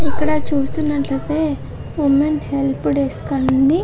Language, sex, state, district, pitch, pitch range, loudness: Telugu, female, Andhra Pradesh, Chittoor, 285 Hz, 260-305 Hz, -19 LUFS